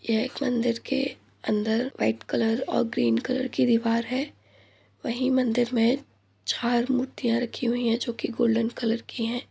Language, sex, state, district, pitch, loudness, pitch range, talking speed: Hindi, female, Uttar Pradesh, Budaun, 240 Hz, -26 LUFS, 230-255 Hz, 175 wpm